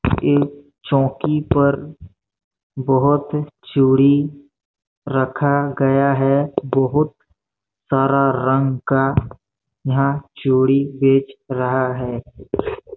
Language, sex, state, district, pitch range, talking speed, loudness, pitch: Hindi, male, Chhattisgarh, Bastar, 130-145 Hz, 80 wpm, -18 LUFS, 135 Hz